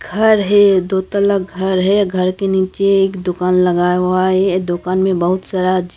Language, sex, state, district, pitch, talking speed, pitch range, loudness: Hindi, female, Maharashtra, Gondia, 185 Hz, 180 wpm, 185-195 Hz, -15 LUFS